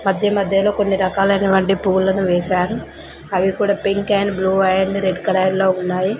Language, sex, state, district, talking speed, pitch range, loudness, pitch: Telugu, female, Telangana, Mahabubabad, 165 wpm, 190-200 Hz, -17 LUFS, 195 Hz